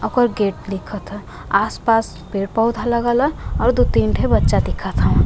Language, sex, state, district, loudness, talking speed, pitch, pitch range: Bhojpuri, female, Uttar Pradesh, Varanasi, -19 LUFS, 195 wpm, 225 Hz, 205-240 Hz